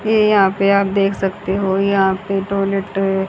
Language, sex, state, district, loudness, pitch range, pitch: Hindi, female, Haryana, Charkhi Dadri, -17 LUFS, 195-200 Hz, 195 Hz